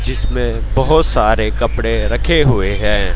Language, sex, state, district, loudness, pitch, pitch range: Hindi, male, Haryana, Rohtak, -15 LUFS, 115 Hz, 105-130 Hz